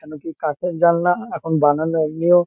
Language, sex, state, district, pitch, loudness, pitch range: Bengali, male, West Bengal, Kolkata, 165 Hz, -19 LUFS, 155-175 Hz